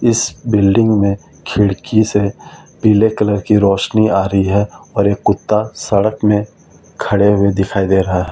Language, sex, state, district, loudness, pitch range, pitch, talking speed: Hindi, male, Delhi, New Delhi, -14 LUFS, 95-105 Hz, 100 Hz, 165 wpm